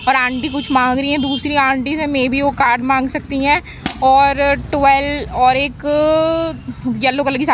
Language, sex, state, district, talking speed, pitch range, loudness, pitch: Hindi, female, Uttar Pradesh, Jyotiba Phule Nagar, 190 wpm, 265-290 Hz, -15 LUFS, 275 Hz